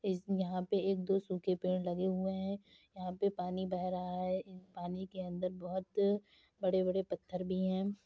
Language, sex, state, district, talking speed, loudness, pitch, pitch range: Hindi, female, Uttar Pradesh, Deoria, 200 wpm, -37 LUFS, 185 Hz, 185-195 Hz